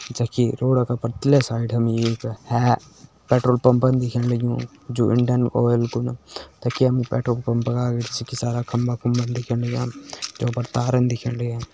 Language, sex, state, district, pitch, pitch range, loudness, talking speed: Hindi, male, Uttarakhand, Tehri Garhwal, 120 Hz, 120-125 Hz, -22 LUFS, 175 wpm